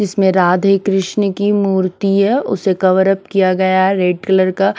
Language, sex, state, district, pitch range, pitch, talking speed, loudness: Hindi, female, Himachal Pradesh, Shimla, 185-200 Hz, 190 Hz, 175 wpm, -14 LUFS